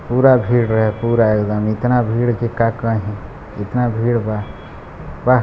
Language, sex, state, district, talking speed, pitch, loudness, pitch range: Hindi, male, Bihar, Gopalganj, 155 wpm, 115 Hz, -17 LUFS, 110-120 Hz